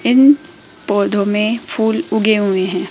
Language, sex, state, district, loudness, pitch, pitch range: Hindi, female, Rajasthan, Jaipur, -15 LUFS, 215 Hz, 200-235 Hz